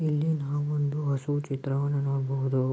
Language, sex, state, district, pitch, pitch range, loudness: Kannada, male, Karnataka, Mysore, 140 Hz, 135-145 Hz, -28 LUFS